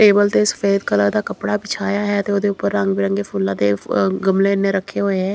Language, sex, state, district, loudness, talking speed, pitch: Punjabi, female, Chandigarh, Chandigarh, -18 LUFS, 225 wpm, 195 Hz